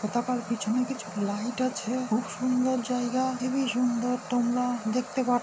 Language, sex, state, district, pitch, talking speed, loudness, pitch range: Bengali, male, West Bengal, North 24 Parganas, 245 Hz, 145 wpm, -28 LUFS, 235-255 Hz